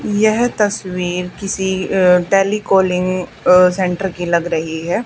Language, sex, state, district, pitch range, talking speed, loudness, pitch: Hindi, female, Haryana, Charkhi Dadri, 180-195 Hz, 130 wpm, -16 LUFS, 185 Hz